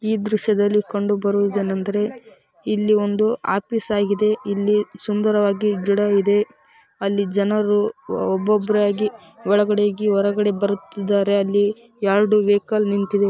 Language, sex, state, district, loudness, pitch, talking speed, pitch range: Kannada, female, Karnataka, Raichur, -20 LUFS, 205 Hz, 110 wpm, 200-210 Hz